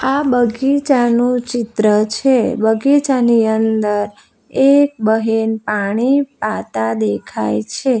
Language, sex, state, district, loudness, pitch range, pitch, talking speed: Gujarati, female, Gujarat, Valsad, -15 LUFS, 215-265 Hz, 230 Hz, 90 wpm